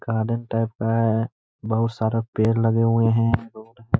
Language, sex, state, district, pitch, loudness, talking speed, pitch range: Hindi, male, Bihar, Gaya, 115 Hz, -22 LUFS, 180 wpm, 110-115 Hz